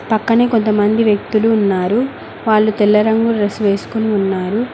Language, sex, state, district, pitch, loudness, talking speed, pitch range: Telugu, female, Telangana, Mahabubabad, 215 Hz, -15 LUFS, 125 wpm, 205-225 Hz